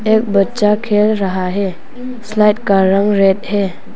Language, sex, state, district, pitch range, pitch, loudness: Hindi, female, Arunachal Pradesh, Papum Pare, 195-215 Hz, 205 Hz, -14 LUFS